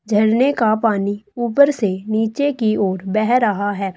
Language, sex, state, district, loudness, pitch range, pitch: Hindi, female, Uttar Pradesh, Saharanpur, -18 LUFS, 205-235 Hz, 215 Hz